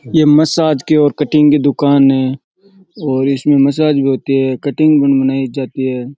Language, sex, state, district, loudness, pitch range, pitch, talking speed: Rajasthani, male, Rajasthan, Churu, -12 LUFS, 135-150 Hz, 140 Hz, 185 wpm